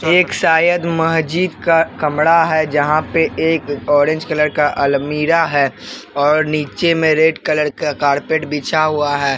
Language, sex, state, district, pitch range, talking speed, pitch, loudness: Hindi, male, Bihar, Katihar, 145-165 Hz, 160 wpm, 155 Hz, -15 LUFS